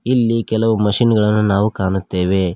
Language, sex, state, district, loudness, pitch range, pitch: Kannada, male, Karnataka, Koppal, -16 LUFS, 95-115 Hz, 105 Hz